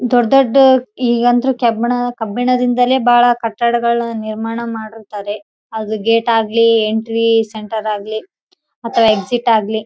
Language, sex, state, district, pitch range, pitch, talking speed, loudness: Kannada, female, Karnataka, Raichur, 220-245 Hz, 230 Hz, 105 wpm, -15 LUFS